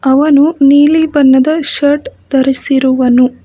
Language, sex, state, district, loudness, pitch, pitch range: Kannada, female, Karnataka, Bangalore, -9 LUFS, 280 Hz, 265-295 Hz